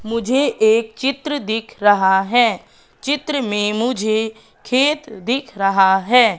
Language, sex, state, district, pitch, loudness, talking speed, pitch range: Hindi, female, Madhya Pradesh, Katni, 225 Hz, -17 LUFS, 120 wpm, 210-260 Hz